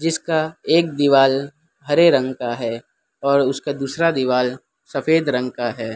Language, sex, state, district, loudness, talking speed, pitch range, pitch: Hindi, male, Gujarat, Valsad, -19 LUFS, 150 wpm, 125-160 Hz, 140 Hz